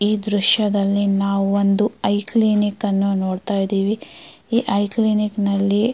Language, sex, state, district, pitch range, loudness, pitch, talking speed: Kannada, female, Karnataka, Mysore, 200-215 Hz, -18 LUFS, 205 Hz, 130 wpm